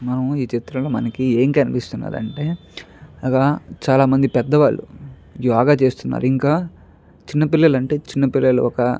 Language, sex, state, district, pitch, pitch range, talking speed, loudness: Telugu, male, Andhra Pradesh, Chittoor, 130 Hz, 125-145 Hz, 140 wpm, -18 LUFS